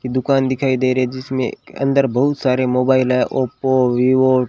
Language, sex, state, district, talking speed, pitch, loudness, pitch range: Hindi, male, Rajasthan, Bikaner, 185 wpm, 130 Hz, -17 LUFS, 130-135 Hz